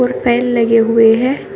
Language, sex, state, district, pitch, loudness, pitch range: Hindi, female, Uttar Pradesh, Shamli, 240 Hz, -12 LUFS, 230-245 Hz